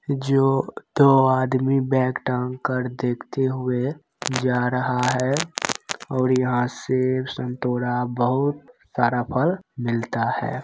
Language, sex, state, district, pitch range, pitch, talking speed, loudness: Hindi, male, Bihar, Begusarai, 125-135 Hz, 130 Hz, 115 wpm, -22 LUFS